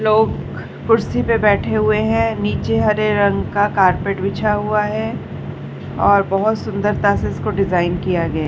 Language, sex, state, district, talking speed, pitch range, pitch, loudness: Hindi, female, Uttar Pradesh, Varanasi, 155 wpm, 195-215 Hz, 210 Hz, -17 LUFS